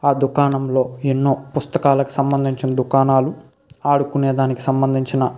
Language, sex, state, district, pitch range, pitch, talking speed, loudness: Telugu, male, Andhra Pradesh, Krishna, 135-140 Hz, 135 Hz, 100 wpm, -18 LUFS